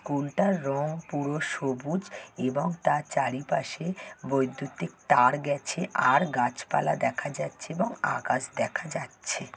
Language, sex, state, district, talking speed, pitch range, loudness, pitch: Bengali, male, West Bengal, Jhargram, 120 wpm, 135-165 Hz, -28 LUFS, 145 Hz